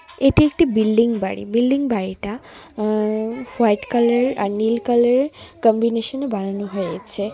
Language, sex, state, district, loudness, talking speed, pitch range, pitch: Bengali, female, Tripura, West Tripura, -19 LUFS, 140 wpm, 210-250 Hz, 230 Hz